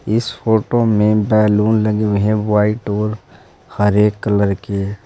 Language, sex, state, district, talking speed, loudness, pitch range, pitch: Hindi, male, Uttar Pradesh, Saharanpur, 155 wpm, -16 LUFS, 105-110 Hz, 105 Hz